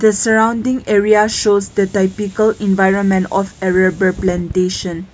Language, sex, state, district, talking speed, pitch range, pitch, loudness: English, female, Nagaland, Kohima, 130 wpm, 185-215 Hz, 195 Hz, -15 LUFS